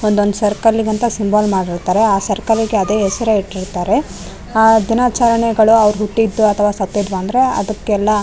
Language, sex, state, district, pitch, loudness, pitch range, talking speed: Kannada, female, Karnataka, Raichur, 210 Hz, -15 LUFS, 205-225 Hz, 145 wpm